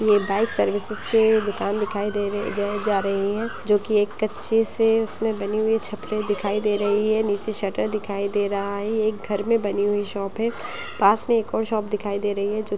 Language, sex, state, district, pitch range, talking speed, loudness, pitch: Hindi, female, Bihar, Muzaffarpur, 205-220 Hz, 225 wpm, -22 LUFS, 210 Hz